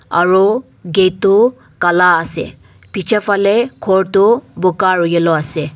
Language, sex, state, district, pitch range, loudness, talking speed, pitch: Nagamese, male, Nagaland, Dimapur, 170-200 Hz, -13 LUFS, 135 wpm, 185 Hz